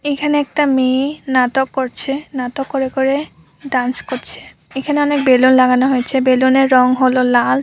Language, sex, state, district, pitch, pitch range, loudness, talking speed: Bengali, female, West Bengal, Purulia, 265 Hz, 255-275 Hz, -15 LUFS, 140 wpm